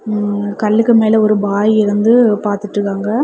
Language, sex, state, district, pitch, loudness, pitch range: Tamil, female, Tamil Nadu, Kanyakumari, 210 Hz, -13 LUFS, 205-220 Hz